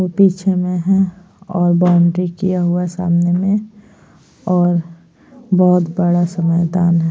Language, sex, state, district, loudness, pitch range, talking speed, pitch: Hindi, female, Chhattisgarh, Sukma, -15 LUFS, 175-185 Hz, 145 wpm, 180 Hz